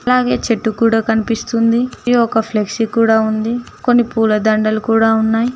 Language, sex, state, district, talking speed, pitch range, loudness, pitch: Telugu, female, Telangana, Mahabubabad, 130 wpm, 220-235 Hz, -15 LUFS, 225 Hz